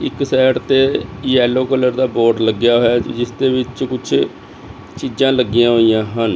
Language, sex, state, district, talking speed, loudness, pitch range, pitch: Punjabi, male, Chandigarh, Chandigarh, 160 wpm, -15 LUFS, 120-130 Hz, 125 Hz